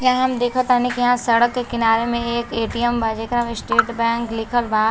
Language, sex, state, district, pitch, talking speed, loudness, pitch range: Bhojpuri, female, Uttar Pradesh, Deoria, 235 Hz, 220 wpm, -19 LUFS, 230-245 Hz